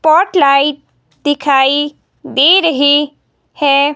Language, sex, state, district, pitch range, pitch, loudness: Hindi, female, Himachal Pradesh, Shimla, 280-305 Hz, 290 Hz, -12 LUFS